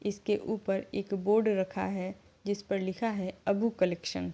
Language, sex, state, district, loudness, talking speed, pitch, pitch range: Hindi, female, Uttar Pradesh, Jyotiba Phule Nagar, -32 LUFS, 180 wpm, 195 Hz, 190-210 Hz